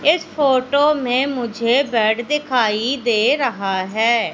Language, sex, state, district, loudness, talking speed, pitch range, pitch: Hindi, female, Madhya Pradesh, Katni, -18 LUFS, 125 wpm, 225-280 Hz, 245 Hz